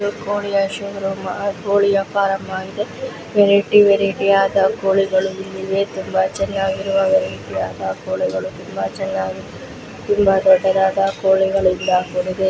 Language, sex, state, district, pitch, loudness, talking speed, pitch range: Kannada, female, Karnataka, Raichur, 195 Hz, -18 LUFS, 95 wpm, 185-200 Hz